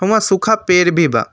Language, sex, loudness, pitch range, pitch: Bhojpuri, male, -13 LUFS, 165-215 Hz, 180 Hz